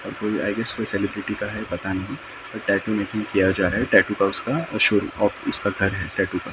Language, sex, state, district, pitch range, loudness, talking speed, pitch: Hindi, male, Maharashtra, Mumbai Suburban, 95-105 Hz, -23 LUFS, 220 wpm, 100 Hz